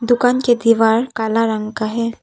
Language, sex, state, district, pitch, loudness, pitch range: Hindi, female, Arunachal Pradesh, Papum Pare, 230 Hz, -16 LUFS, 220-240 Hz